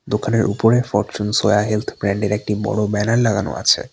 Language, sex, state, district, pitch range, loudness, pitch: Bengali, male, West Bengal, Alipurduar, 105-115 Hz, -18 LUFS, 105 Hz